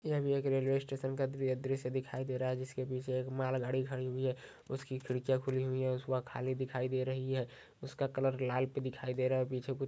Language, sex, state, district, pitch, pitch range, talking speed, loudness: Hindi, male, Maharashtra, Nagpur, 130 Hz, 130-135 Hz, 230 wpm, -36 LUFS